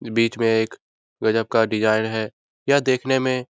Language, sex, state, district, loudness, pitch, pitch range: Hindi, male, Bihar, Jahanabad, -21 LUFS, 115 Hz, 110-130 Hz